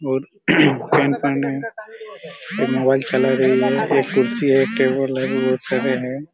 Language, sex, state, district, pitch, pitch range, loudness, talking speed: Hindi, male, Chhattisgarh, Raigarh, 130 Hz, 130-140 Hz, -18 LUFS, 150 wpm